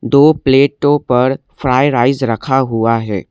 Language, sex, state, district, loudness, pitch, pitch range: Hindi, male, Assam, Kamrup Metropolitan, -13 LUFS, 130 Hz, 120-140 Hz